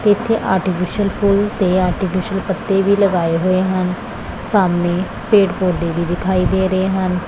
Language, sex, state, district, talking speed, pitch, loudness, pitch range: Punjabi, female, Punjab, Pathankot, 155 wpm, 190 Hz, -17 LUFS, 180-200 Hz